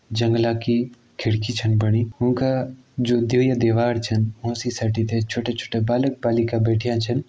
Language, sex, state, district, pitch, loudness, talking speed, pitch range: Garhwali, male, Uttarakhand, Tehri Garhwal, 120 Hz, -22 LUFS, 165 wpm, 115-120 Hz